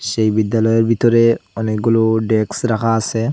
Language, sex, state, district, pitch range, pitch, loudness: Bengali, male, Assam, Hailakandi, 110-115 Hz, 115 Hz, -16 LUFS